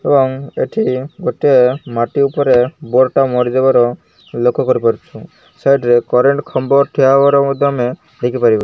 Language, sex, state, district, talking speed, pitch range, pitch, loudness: Odia, male, Odisha, Malkangiri, 155 wpm, 125-140 Hz, 135 Hz, -14 LUFS